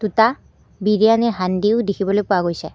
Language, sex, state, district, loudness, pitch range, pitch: Assamese, female, Assam, Kamrup Metropolitan, -18 LUFS, 195-225 Hz, 210 Hz